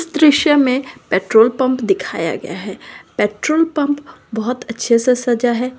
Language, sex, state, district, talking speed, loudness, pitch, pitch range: Hindi, female, Chhattisgarh, Sarguja, 155 wpm, -16 LUFS, 255 Hz, 235-290 Hz